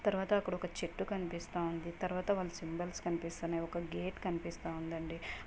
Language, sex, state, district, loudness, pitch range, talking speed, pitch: Telugu, female, Andhra Pradesh, Guntur, -39 LUFS, 170-180 Hz, 140 wpm, 170 Hz